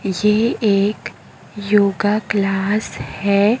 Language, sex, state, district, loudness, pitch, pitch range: Hindi, male, Chhattisgarh, Raipur, -18 LUFS, 205 Hz, 195-210 Hz